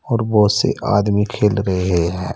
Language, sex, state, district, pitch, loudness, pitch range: Hindi, male, Uttar Pradesh, Saharanpur, 100 Hz, -17 LUFS, 90-105 Hz